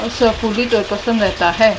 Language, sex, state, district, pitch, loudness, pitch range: Hindi, female, Haryana, Jhajjar, 225 Hz, -16 LUFS, 205-230 Hz